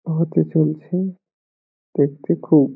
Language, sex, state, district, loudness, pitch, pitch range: Bengali, male, West Bengal, Malda, -20 LUFS, 155 Hz, 135-165 Hz